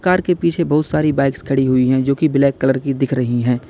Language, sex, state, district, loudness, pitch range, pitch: Hindi, male, Uttar Pradesh, Lalitpur, -17 LUFS, 130-155 Hz, 135 Hz